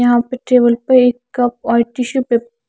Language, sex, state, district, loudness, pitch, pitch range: Hindi, female, Chandigarh, Chandigarh, -15 LUFS, 245 Hz, 235-250 Hz